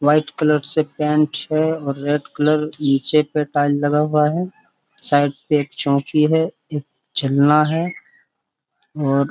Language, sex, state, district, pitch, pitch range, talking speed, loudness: Hindi, male, Jharkhand, Sahebganj, 150 Hz, 145-155 Hz, 150 wpm, -19 LUFS